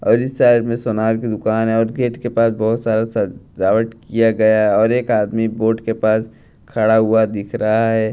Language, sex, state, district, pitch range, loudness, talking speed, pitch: Hindi, male, Bihar, Katihar, 110-115 Hz, -17 LUFS, 205 wpm, 110 Hz